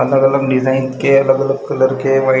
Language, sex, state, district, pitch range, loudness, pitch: Hindi, male, Maharashtra, Gondia, 130-135 Hz, -14 LUFS, 135 Hz